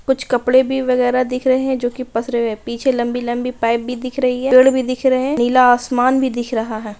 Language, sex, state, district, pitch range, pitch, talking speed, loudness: Hindi, female, Bihar, Bhagalpur, 240-260 Hz, 250 Hz, 255 wpm, -17 LUFS